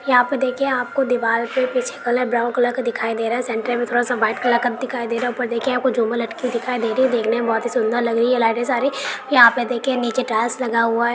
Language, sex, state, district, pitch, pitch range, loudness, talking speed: Hindi, male, Uttar Pradesh, Ghazipur, 240 Hz, 235-250 Hz, -19 LUFS, 285 wpm